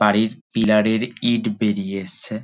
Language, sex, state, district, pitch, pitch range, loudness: Bengali, male, West Bengal, Dakshin Dinajpur, 110 Hz, 105-115 Hz, -21 LUFS